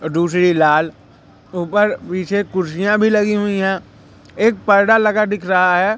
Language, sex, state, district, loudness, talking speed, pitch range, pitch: Hindi, male, Madhya Pradesh, Katni, -16 LUFS, 150 wpm, 180-210 Hz, 195 Hz